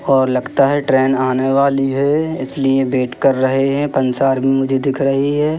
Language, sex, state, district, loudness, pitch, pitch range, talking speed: Hindi, male, Madhya Pradesh, Katni, -16 LUFS, 135 Hz, 130-140 Hz, 180 wpm